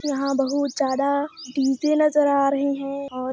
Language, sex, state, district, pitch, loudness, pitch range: Hindi, female, Chhattisgarh, Sarguja, 280 Hz, -22 LUFS, 270-285 Hz